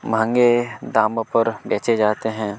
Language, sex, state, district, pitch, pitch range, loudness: Hindi, male, Chhattisgarh, Kabirdham, 110 Hz, 110-115 Hz, -19 LUFS